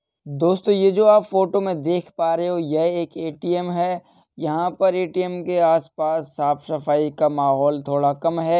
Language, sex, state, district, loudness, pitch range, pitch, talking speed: Hindi, male, Uttar Pradesh, Jalaun, -20 LUFS, 155-180 Hz, 165 Hz, 180 wpm